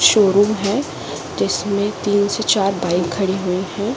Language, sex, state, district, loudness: Hindi, female, Uttar Pradesh, Jalaun, -18 LUFS